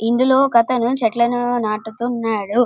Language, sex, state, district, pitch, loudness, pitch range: Telugu, female, Andhra Pradesh, Krishna, 235 Hz, -18 LUFS, 225-245 Hz